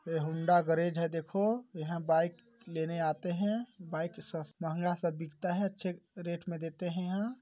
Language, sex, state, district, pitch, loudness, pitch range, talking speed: Hindi, male, Chhattisgarh, Balrampur, 170 Hz, -34 LUFS, 165-185 Hz, 180 wpm